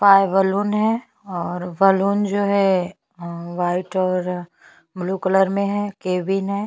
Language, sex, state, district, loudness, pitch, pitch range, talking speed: Hindi, female, Chhattisgarh, Bastar, -20 LUFS, 190 Hz, 180-200 Hz, 110 wpm